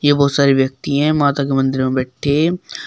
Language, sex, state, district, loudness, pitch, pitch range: Hindi, female, Uttar Pradesh, Shamli, -16 LUFS, 140 Hz, 135-145 Hz